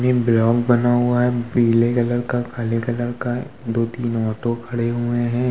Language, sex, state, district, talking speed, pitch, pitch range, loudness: Hindi, male, Uttar Pradesh, Muzaffarnagar, 140 wpm, 120 Hz, 115-120 Hz, -20 LUFS